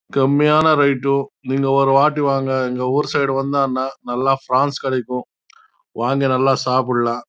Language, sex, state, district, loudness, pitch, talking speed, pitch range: Tamil, male, Karnataka, Chamarajanagar, -18 LUFS, 135 Hz, 100 wpm, 130-140 Hz